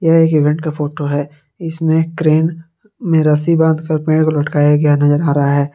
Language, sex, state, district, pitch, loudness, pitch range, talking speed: Hindi, male, Jharkhand, Palamu, 155 Hz, -14 LUFS, 145-160 Hz, 210 wpm